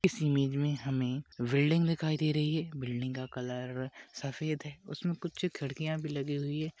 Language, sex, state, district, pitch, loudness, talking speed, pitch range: Hindi, male, Maharashtra, Pune, 145 Hz, -34 LUFS, 185 wpm, 135-155 Hz